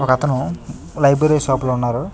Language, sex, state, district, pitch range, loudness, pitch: Telugu, male, Andhra Pradesh, Chittoor, 130-155 Hz, -17 LUFS, 140 Hz